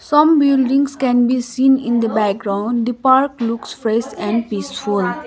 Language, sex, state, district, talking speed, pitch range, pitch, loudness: English, female, Sikkim, Gangtok, 160 wpm, 220-270 Hz, 240 Hz, -17 LUFS